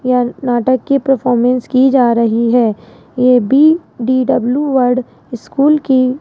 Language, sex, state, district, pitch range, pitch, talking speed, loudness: Hindi, female, Rajasthan, Jaipur, 245-270 Hz, 255 Hz, 135 wpm, -13 LUFS